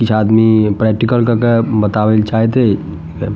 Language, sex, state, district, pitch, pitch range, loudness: Maithili, male, Bihar, Madhepura, 110 Hz, 105-115 Hz, -13 LUFS